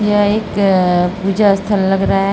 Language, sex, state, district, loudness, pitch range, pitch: Hindi, female, Bihar, Araria, -14 LUFS, 195-205 Hz, 195 Hz